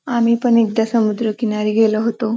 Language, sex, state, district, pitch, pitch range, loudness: Marathi, female, Maharashtra, Pune, 225 Hz, 220-230 Hz, -17 LUFS